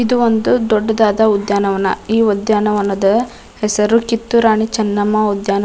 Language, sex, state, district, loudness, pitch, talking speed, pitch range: Kannada, female, Karnataka, Dharwad, -15 LUFS, 215 Hz, 125 wpm, 205-225 Hz